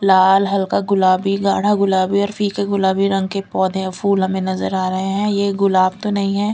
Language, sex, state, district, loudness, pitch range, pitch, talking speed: Hindi, female, Delhi, New Delhi, -17 LUFS, 190-200 Hz, 195 Hz, 200 wpm